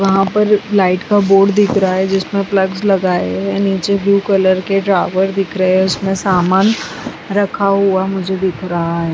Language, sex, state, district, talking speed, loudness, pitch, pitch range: Hindi, female, Bihar, West Champaran, 190 wpm, -14 LUFS, 195 Hz, 190-200 Hz